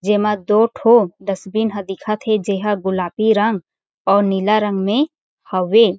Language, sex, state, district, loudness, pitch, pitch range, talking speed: Chhattisgarhi, female, Chhattisgarh, Jashpur, -17 LUFS, 210 Hz, 195-220 Hz, 160 wpm